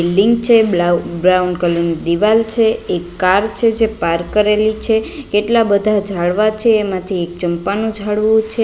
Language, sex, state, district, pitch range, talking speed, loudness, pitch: Gujarati, female, Gujarat, Gandhinagar, 175-220 Hz, 165 wpm, -15 LUFS, 210 Hz